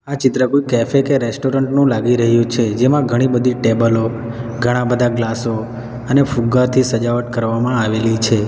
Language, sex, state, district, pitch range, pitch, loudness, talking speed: Gujarati, male, Gujarat, Valsad, 115-130 Hz, 120 Hz, -16 LUFS, 165 wpm